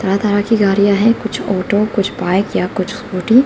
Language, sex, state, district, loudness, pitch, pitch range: Hindi, female, Arunachal Pradesh, Lower Dibang Valley, -15 LUFS, 205 Hz, 195-220 Hz